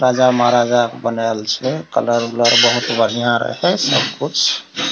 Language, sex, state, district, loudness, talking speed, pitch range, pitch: Maithili, male, Bihar, Darbhanga, -16 LUFS, 120 wpm, 115-120 Hz, 120 Hz